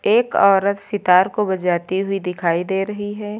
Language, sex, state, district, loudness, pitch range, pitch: Hindi, female, Uttar Pradesh, Lucknow, -18 LUFS, 185-210 Hz, 195 Hz